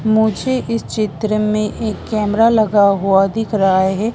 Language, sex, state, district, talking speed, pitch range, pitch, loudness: Hindi, female, Madhya Pradesh, Dhar, 160 wpm, 200-225 Hz, 215 Hz, -16 LUFS